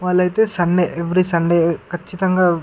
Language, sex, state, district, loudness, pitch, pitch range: Telugu, male, Andhra Pradesh, Guntur, -17 LUFS, 180 Hz, 170-185 Hz